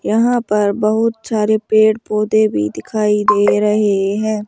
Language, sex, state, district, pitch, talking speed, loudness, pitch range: Hindi, female, Rajasthan, Jaipur, 215 Hz, 145 wpm, -15 LUFS, 210-215 Hz